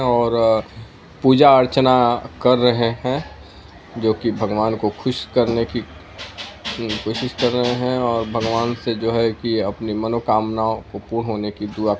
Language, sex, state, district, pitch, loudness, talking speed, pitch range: Hindi, male, Uttar Pradesh, Gorakhpur, 115 Hz, -19 LUFS, 160 wpm, 110-125 Hz